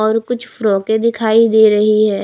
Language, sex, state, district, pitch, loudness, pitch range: Hindi, female, Haryana, Rohtak, 220 Hz, -13 LUFS, 215-230 Hz